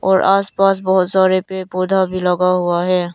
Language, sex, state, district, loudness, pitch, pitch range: Hindi, female, Arunachal Pradesh, Lower Dibang Valley, -16 LUFS, 185 Hz, 180-190 Hz